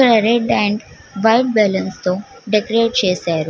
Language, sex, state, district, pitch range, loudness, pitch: Telugu, female, Andhra Pradesh, Guntur, 190-230 Hz, -16 LUFS, 215 Hz